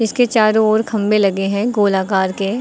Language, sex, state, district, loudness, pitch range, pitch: Hindi, female, Uttar Pradesh, Lucknow, -16 LUFS, 195-220 Hz, 210 Hz